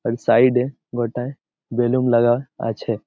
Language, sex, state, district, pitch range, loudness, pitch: Bengali, male, West Bengal, Malda, 120-130 Hz, -20 LUFS, 120 Hz